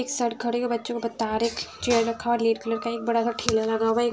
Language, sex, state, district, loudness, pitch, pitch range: Hindi, female, Punjab, Fazilka, -25 LUFS, 235 Hz, 225-235 Hz